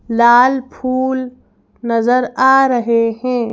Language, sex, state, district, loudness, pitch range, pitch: Hindi, female, Madhya Pradesh, Bhopal, -14 LUFS, 235-260 Hz, 250 Hz